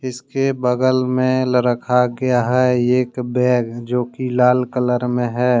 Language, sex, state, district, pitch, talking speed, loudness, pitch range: Hindi, male, Jharkhand, Deoghar, 125 Hz, 150 wpm, -18 LUFS, 125-130 Hz